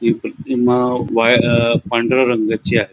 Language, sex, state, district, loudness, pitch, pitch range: Marathi, male, Goa, North and South Goa, -16 LUFS, 120 Hz, 115-125 Hz